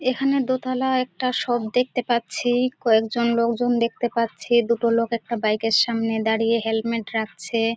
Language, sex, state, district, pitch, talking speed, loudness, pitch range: Bengali, female, West Bengal, Dakshin Dinajpur, 235 Hz, 140 wpm, -22 LUFS, 225-250 Hz